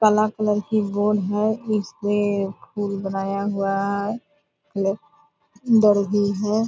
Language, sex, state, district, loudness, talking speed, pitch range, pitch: Hindi, female, Bihar, Purnia, -22 LUFS, 135 wpm, 200-215 Hz, 205 Hz